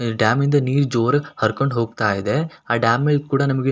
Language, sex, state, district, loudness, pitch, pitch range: Kannada, male, Karnataka, Shimoga, -19 LUFS, 135 Hz, 115-140 Hz